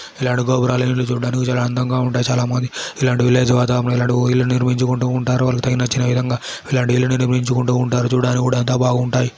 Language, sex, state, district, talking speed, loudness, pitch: Telugu, male, Andhra Pradesh, Chittoor, 175 wpm, -17 LUFS, 125 Hz